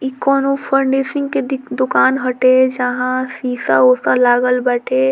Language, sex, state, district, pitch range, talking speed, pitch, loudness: Bhojpuri, female, Bihar, Muzaffarpur, 250-270 Hz, 115 wpm, 255 Hz, -15 LUFS